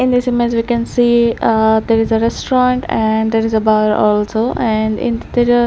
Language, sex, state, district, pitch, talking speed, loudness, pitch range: English, female, Chandigarh, Chandigarh, 230 Hz, 210 wpm, -14 LUFS, 220-240 Hz